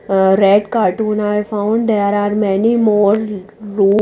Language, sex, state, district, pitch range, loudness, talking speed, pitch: English, female, Odisha, Nuapada, 200-215 Hz, -14 LUFS, 135 wpm, 205 Hz